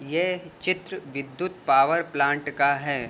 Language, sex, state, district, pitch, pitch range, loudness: Hindi, male, Uttar Pradesh, Jalaun, 145 Hz, 140-175 Hz, -25 LUFS